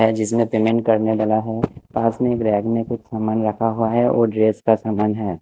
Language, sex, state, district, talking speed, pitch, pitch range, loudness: Hindi, male, Chandigarh, Chandigarh, 230 wpm, 110 Hz, 110-115 Hz, -19 LUFS